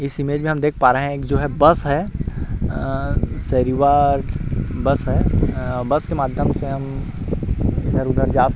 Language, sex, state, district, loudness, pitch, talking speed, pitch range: Hindi, male, Chhattisgarh, Rajnandgaon, -20 LUFS, 140 Hz, 205 wpm, 135-145 Hz